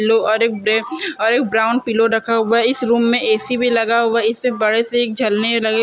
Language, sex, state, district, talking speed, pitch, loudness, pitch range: Hindi, female, Maharashtra, Pune, 275 wpm, 230 Hz, -16 LUFS, 225-240 Hz